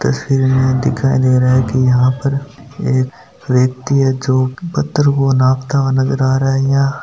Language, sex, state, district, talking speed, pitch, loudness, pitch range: Hindi, male, Rajasthan, Nagaur, 190 wpm, 130 Hz, -14 LUFS, 130-140 Hz